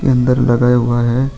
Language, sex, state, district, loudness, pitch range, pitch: Hindi, male, Chhattisgarh, Sukma, -13 LUFS, 120-130 Hz, 125 Hz